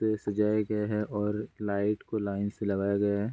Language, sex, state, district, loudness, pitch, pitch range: Hindi, male, Bihar, Bhagalpur, -30 LUFS, 105 Hz, 100-105 Hz